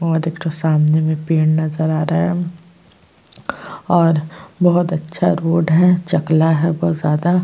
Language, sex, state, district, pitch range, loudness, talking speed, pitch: Hindi, female, Uttar Pradesh, Jyotiba Phule Nagar, 160-175 Hz, -16 LUFS, 160 wpm, 165 Hz